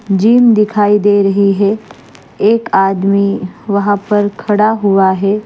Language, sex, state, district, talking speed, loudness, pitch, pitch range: Hindi, female, Maharashtra, Mumbai Suburban, 130 wpm, -12 LUFS, 205 Hz, 200-215 Hz